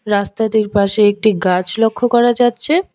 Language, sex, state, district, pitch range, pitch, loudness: Bengali, female, West Bengal, Alipurduar, 205-240 Hz, 220 Hz, -14 LUFS